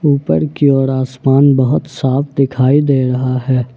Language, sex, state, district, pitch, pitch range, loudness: Hindi, male, Jharkhand, Ranchi, 135 Hz, 130-140 Hz, -13 LUFS